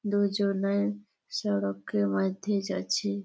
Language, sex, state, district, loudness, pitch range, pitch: Bengali, female, West Bengal, Jalpaiguri, -29 LUFS, 145-205 Hz, 200 Hz